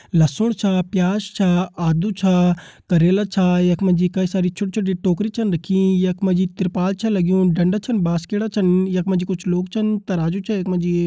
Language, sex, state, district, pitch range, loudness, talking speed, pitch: Hindi, male, Uttarakhand, Tehri Garhwal, 180-195 Hz, -19 LUFS, 190 wpm, 185 Hz